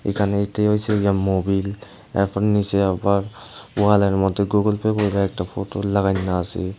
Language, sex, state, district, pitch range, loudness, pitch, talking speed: Bengali, male, Tripura, Unakoti, 95-105 Hz, -21 LUFS, 100 Hz, 150 wpm